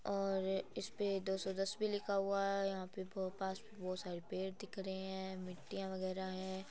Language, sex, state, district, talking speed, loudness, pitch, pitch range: Hindi, female, Rajasthan, Churu, 180 wpm, -41 LUFS, 190 Hz, 190-195 Hz